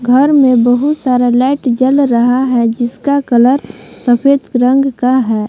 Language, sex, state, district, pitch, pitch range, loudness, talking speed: Hindi, female, Jharkhand, Palamu, 250 Hz, 240-270 Hz, -11 LUFS, 155 wpm